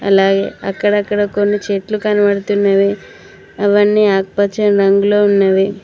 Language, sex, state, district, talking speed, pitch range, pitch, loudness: Telugu, female, Telangana, Mahabubabad, 90 wpm, 195-205 Hz, 200 Hz, -14 LUFS